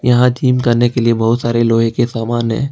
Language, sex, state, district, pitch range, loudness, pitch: Hindi, male, Jharkhand, Ranchi, 115-125 Hz, -14 LUFS, 120 Hz